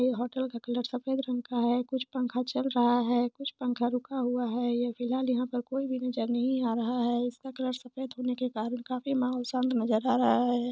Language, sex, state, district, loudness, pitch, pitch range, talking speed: Hindi, female, Jharkhand, Sahebganj, -30 LUFS, 250 Hz, 240-255 Hz, 235 wpm